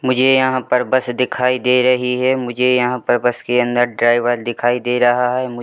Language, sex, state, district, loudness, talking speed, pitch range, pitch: Hindi, male, Chhattisgarh, Bilaspur, -16 LUFS, 225 wpm, 120-125 Hz, 125 Hz